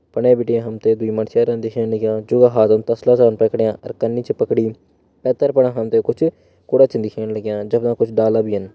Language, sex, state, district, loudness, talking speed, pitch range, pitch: Hindi, male, Uttarakhand, Uttarkashi, -17 LUFS, 200 wpm, 110-120 Hz, 110 Hz